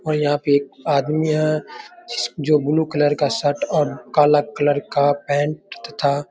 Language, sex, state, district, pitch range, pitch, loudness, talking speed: Hindi, male, Bihar, Darbhanga, 145-155 Hz, 150 Hz, -19 LUFS, 160 wpm